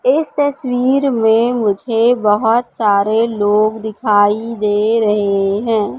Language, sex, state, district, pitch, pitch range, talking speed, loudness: Hindi, female, Madhya Pradesh, Katni, 220 Hz, 210-240 Hz, 110 wpm, -15 LUFS